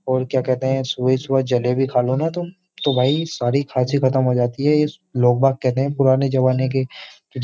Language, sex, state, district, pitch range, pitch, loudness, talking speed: Hindi, male, Uttar Pradesh, Jyotiba Phule Nagar, 130-140 Hz, 130 Hz, -19 LUFS, 225 wpm